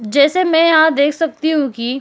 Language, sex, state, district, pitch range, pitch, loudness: Hindi, female, Uttar Pradesh, Jyotiba Phule Nagar, 275-325 Hz, 305 Hz, -14 LUFS